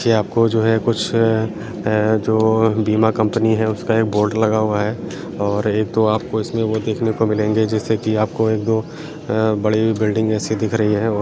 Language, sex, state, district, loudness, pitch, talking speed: Kumaoni, male, Uttarakhand, Uttarkashi, -18 LUFS, 110 Hz, 200 wpm